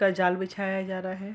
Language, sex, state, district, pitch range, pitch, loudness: Hindi, female, Bihar, Araria, 185-195 Hz, 190 Hz, -29 LUFS